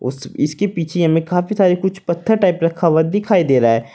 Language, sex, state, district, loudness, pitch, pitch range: Hindi, male, Uttar Pradesh, Saharanpur, -16 LUFS, 170 Hz, 160-190 Hz